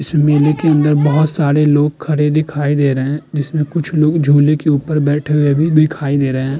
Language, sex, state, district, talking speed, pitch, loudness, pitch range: Hindi, male, Uttar Pradesh, Muzaffarnagar, 235 wpm, 150 Hz, -14 LUFS, 145-155 Hz